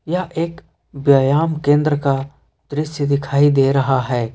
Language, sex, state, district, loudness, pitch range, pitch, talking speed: Hindi, male, Jharkhand, Ranchi, -17 LUFS, 135-155 Hz, 145 Hz, 140 wpm